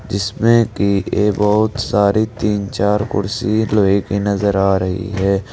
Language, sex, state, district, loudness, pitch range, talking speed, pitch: Hindi, male, Uttar Pradesh, Saharanpur, -16 LUFS, 100-110 Hz, 150 wpm, 100 Hz